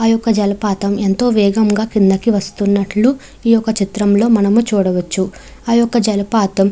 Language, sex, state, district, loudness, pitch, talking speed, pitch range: Telugu, female, Andhra Pradesh, Chittoor, -15 LUFS, 210 Hz, 145 wpm, 200-225 Hz